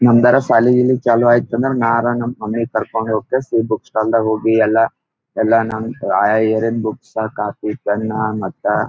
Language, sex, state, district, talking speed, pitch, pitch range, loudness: Kannada, male, Karnataka, Gulbarga, 180 wpm, 115 Hz, 110-120 Hz, -16 LUFS